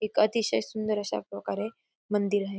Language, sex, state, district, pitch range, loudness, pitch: Marathi, female, Maharashtra, Dhule, 200-215 Hz, -29 LUFS, 210 Hz